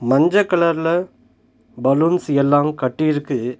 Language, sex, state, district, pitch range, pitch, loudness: Tamil, male, Tamil Nadu, Nilgiris, 135-170 Hz, 150 Hz, -18 LUFS